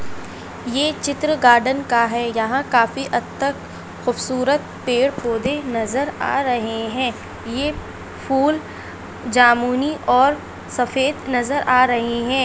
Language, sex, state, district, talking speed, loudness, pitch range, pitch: Hindi, female, Uttar Pradesh, Etah, 115 wpm, -19 LUFS, 235-275 Hz, 255 Hz